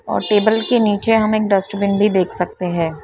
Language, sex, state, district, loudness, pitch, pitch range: Hindi, female, Maharashtra, Mumbai Suburban, -17 LUFS, 205 Hz, 190-215 Hz